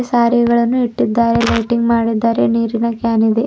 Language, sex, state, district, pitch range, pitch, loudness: Kannada, female, Karnataka, Bidar, 230-235 Hz, 235 Hz, -15 LUFS